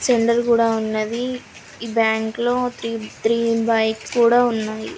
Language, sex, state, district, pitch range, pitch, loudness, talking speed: Telugu, female, Andhra Pradesh, Krishna, 220-240 Hz, 230 Hz, -20 LUFS, 120 wpm